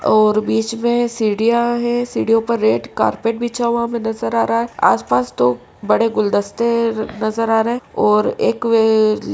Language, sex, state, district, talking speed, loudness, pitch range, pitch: Hindi, female, Uttar Pradesh, Etah, 175 wpm, -17 LUFS, 210-235 Hz, 225 Hz